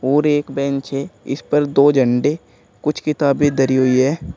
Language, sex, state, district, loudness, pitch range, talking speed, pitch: Hindi, male, Uttar Pradesh, Shamli, -17 LUFS, 135-145 Hz, 180 wpm, 140 Hz